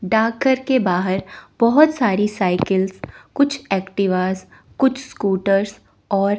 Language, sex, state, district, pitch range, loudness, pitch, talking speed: Hindi, female, Chandigarh, Chandigarh, 190-250 Hz, -19 LUFS, 200 Hz, 105 wpm